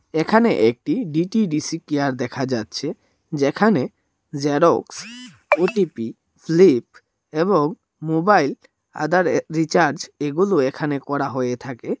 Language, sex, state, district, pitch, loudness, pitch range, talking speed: Bengali, male, Tripura, Dhalai, 150 Hz, -20 LUFS, 130-180 Hz, 95 wpm